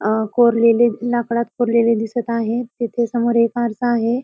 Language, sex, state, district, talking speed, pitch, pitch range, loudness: Marathi, female, Maharashtra, Pune, 155 wpm, 235 Hz, 230-240 Hz, -18 LUFS